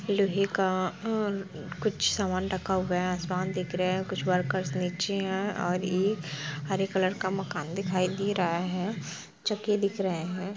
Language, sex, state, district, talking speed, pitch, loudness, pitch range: Hindi, female, Bihar, Gopalganj, 170 wpm, 185 Hz, -29 LUFS, 180-195 Hz